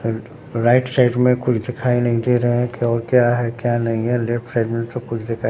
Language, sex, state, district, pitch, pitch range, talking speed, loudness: Hindi, male, Bihar, Katihar, 120 Hz, 115-125 Hz, 260 wpm, -19 LUFS